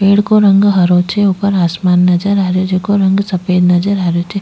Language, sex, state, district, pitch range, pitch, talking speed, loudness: Rajasthani, female, Rajasthan, Nagaur, 180-200 Hz, 185 Hz, 245 wpm, -12 LUFS